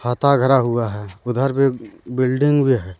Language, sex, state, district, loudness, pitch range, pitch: Hindi, male, Jharkhand, Deoghar, -18 LUFS, 120-135 Hz, 130 Hz